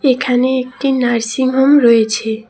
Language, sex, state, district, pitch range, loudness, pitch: Bengali, female, West Bengal, Cooch Behar, 230-265 Hz, -13 LUFS, 255 Hz